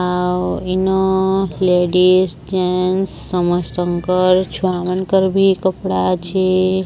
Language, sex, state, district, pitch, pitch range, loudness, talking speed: Odia, male, Odisha, Sambalpur, 185 Hz, 180-190 Hz, -16 LUFS, 80 wpm